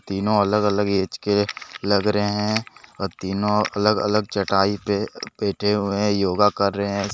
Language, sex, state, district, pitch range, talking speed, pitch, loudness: Hindi, male, Jharkhand, Deoghar, 100-105 Hz, 175 wpm, 105 Hz, -22 LUFS